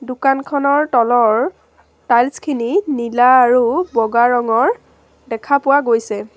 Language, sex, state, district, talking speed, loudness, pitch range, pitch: Assamese, female, Assam, Sonitpur, 95 wpm, -15 LUFS, 235-280 Hz, 245 Hz